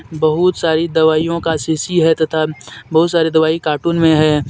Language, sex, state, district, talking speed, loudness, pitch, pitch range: Hindi, male, Jharkhand, Deoghar, 175 wpm, -15 LUFS, 160 Hz, 155-165 Hz